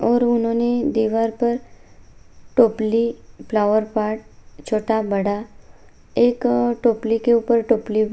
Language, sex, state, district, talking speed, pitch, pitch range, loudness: Hindi, female, Bihar, Bhagalpur, 105 wpm, 230 Hz, 215-235 Hz, -20 LUFS